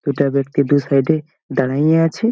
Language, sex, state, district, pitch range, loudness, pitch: Bengali, male, West Bengal, Malda, 140-160 Hz, -17 LUFS, 145 Hz